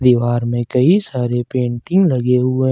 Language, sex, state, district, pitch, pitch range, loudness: Hindi, male, Jharkhand, Ranchi, 125 Hz, 120-130 Hz, -16 LUFS